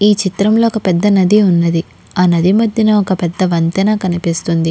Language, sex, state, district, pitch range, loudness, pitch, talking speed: Telugu, female, Andhra Pradesh, Krishna, 170-210 Hz, -13 LUFS, 185 Hz, 180 wpm